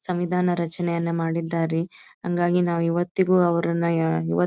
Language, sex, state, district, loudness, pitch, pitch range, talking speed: Kannada, female, Karnataka, Dharwad, -23 LUFS, 170 Hz, 165-175 Hz, 135 wpm